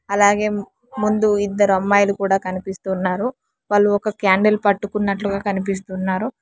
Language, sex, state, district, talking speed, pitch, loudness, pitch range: Telugu, male, Telangana, Hyderabad, 105 wpm, 200 Hz, -19 LUFS, 195-210 Hz